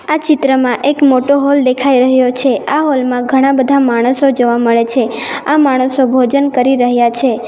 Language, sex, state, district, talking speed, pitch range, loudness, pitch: Gujarati, female, Gujarat, Valsad, 185 wpm, 245-280 Hz, -11 LUFS, 260 Hz